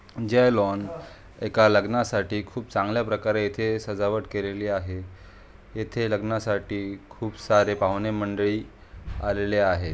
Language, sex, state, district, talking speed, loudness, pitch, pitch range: Marathi, male, Maharashtra, Aurangabad, 115 wpm, -25 LUFS, 105 Hz, 100-110 Hz